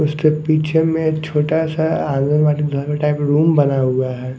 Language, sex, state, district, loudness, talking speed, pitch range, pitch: Hindi, male, Odisha, Nuapada, -17 LUFS, 180 wpm, 145-155 Hz, 150 Hz